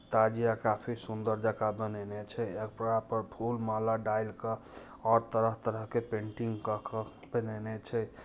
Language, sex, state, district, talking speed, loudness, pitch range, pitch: Hindi, male, Bihar, Muzaffarpur, 140 wpm, -33 LUFS, 110-115 Hz, 110 Hz